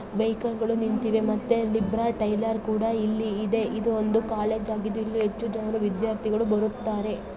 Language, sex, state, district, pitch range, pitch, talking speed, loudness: Kannada, female, Karnataka, Raichur, 215-225 Hz, 220 Hz, 145 wpm, -26 LUFS